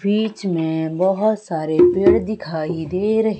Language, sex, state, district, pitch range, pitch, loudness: Hindi, female, Madhya Pradesh, Umaria, 160-215 Hz, 185 Hz, -19 LUFS